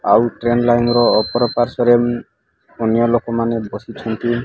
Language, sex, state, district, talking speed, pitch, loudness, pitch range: Odia, male, Odisha, Malkangiri, 150 wpm, 120 Hz, -16 LUFS, 115-120 Hz